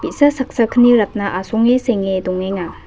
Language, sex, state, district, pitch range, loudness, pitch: Garo, female, Meghalaya, West Garo Hills, 190-245 Hz, -16 LUFS, 220 Hz